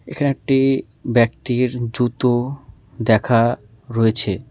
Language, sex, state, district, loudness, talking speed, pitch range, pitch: Bengali, male, West Bengal, Alipurduar, -18 LUFS, 80 wpm, 115-125 Hz, 120 Hz